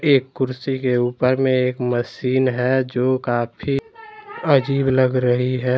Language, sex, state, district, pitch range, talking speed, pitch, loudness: Hindi, male, Jharkhand, Deoghar, 125-135 Hz, 145 wpm, 130 Hz, -20 LUFS